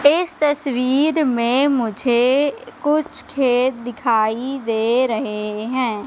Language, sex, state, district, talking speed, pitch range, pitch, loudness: Hindi, female, Madhya Pradesh, Katni, 100 wpm, 235-285 Hz, 255 Hz, -19 LUFS